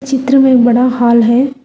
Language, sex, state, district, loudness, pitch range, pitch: Hindi, female, Telangana, Hyderabad, -10 LUFS, 240-265 Hz, 255 Hz